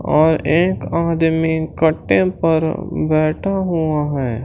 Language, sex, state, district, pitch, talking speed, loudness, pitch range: Hindi, male, Chhattisgarh, Raipur, 160 Hz, 110 wpm, -17 LUFS, 150-165 Hz